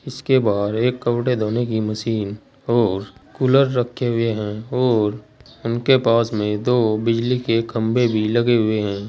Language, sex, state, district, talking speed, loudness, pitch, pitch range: Hindi, male, Uttar Pradesh, Saharanpur, 160 wpm, -19 LUFS, 115 Hz, 110-125 Hz